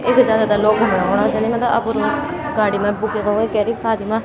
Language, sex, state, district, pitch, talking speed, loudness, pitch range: Garhwali, female, Uttarakhand, Tehri Garhwal, 220 Hz, 225 wpm, -17 LUFS, 210-230 Hz